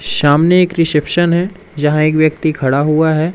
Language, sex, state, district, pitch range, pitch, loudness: Hindi, male, Madhya Pradesh, Umaria, 150-170 Hz, 155 Hz, -13 LUFS